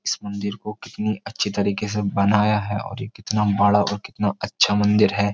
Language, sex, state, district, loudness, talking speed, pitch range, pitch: Hindi, male, Uttar Pradesh, Jyotiba Phule Nagar, -21 LUFS, 200 wpm, 100-105 Hz, 105 Hz